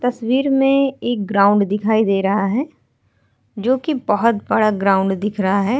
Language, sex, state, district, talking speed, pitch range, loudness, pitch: Hindi, female, Uttar Pradesh, Muzaffarnagar, 155 wpm, 200-255 Hz, -17 LUFS, 215 Hz